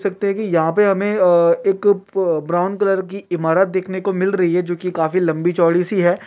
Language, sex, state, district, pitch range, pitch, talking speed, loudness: Hindi, male, Uttar Pradesh, Ghazipur, 175-195 Hz, 185 Hz, 230 wpm, -17 LUFS